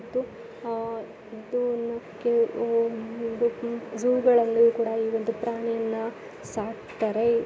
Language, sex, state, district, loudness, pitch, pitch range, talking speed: Kannada, female, Karnataka, Bellary, -26 LUFS, 230 Hz, 225-235 Hz, 70 wpm